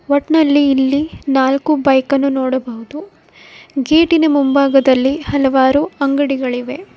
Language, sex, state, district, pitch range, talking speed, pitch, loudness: Kannada, female, Karnataka, Koppal, 265-290 Hz, 85 wpm, 275 Hz, -14 LUFS